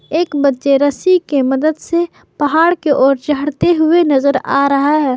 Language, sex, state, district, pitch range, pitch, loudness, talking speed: Hindi, female, Jharkhand, Garhwa, 275-325 Hz, 290 Hz, -14 LUFS, 175 wpm